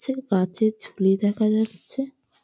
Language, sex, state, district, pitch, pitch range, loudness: Bengali, female, West Bengal, Malda, 215 Hz, 195-260 Hz, -23 LUFS